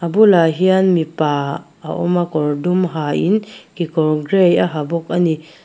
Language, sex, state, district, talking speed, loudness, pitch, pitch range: Mizo, female, Mizoram, Aizawl, 180 wpm, -16 LUFS, 170 Hz, 155-185 Hz